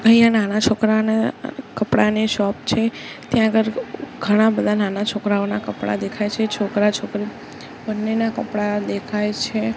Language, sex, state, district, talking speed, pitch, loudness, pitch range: Gujarati, female, Gujarat, Gandhinagar, 125 wpm, 210 Hz, -20 LUFS, 205-220 Hz